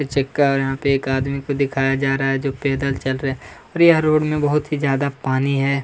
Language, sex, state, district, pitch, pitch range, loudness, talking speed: Hindi, male, Chhattisgarh, Kabirdham, 140 Hz, 135-140 Hz, -19 LUFS, 255 wpm